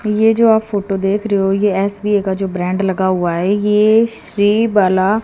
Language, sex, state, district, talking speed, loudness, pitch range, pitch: Hindi, female, Haryana, Charkhi Dadri, 205 wpm, -15 LUFS, 190-215 Hz, 200 Hz